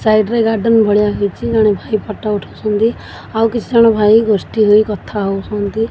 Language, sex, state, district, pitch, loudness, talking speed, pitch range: Odia, female, Odisha, Khordha, 215 Hz, -14 LUFS, 185 wpm, 210-225 Hz